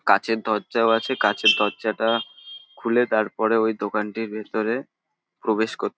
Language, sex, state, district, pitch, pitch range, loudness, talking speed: Bengali, male, West Bengal, North 24 Parganas, 110 Hz, 110-115 Hz, -22 LUFS, 130 wpm